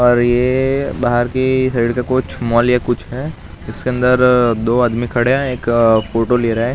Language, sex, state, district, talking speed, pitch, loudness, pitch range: Hindi, male, Gujarat, Gandhinagar, 160 wpm, 120 Hz, -15 LUFS, 120-130 Hz